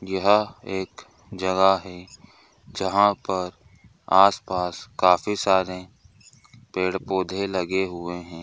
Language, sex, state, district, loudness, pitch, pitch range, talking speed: Hindi, male, Chhattisgarh, Bastar, -23 LUFS, 95 Hz, 90-95 Hz, 100 wpm